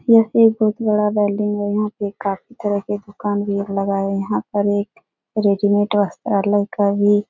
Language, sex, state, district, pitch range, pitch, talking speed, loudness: Hindi, female, Bihar, Jahanabad, 200-210 Hz, 205 Hz, 195 wpm, -19 LUFS